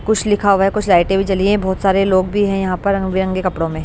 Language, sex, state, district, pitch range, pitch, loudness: Hindi, female, Bihar, Patna, 185-200 Hz, 195 Hz, -16 LUFS